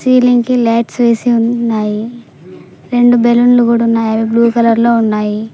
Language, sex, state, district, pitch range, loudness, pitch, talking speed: Telugu, female, Telangana, Mahabubabad, 225-240 Hz, -11 LUFS, 235 Hz, 130 wpm